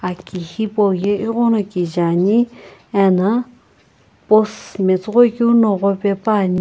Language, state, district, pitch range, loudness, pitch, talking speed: Sumi, Nagaland, Kohima, 185-225 Hz, -17 LUFS, 205 Hz, 135 wpm